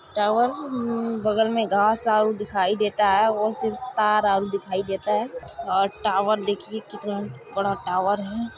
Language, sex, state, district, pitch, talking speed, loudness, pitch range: Maithili, female, Bihar, Supaul, 210 Hz, 160 wpm, -23 LUFS, 200-220 Hz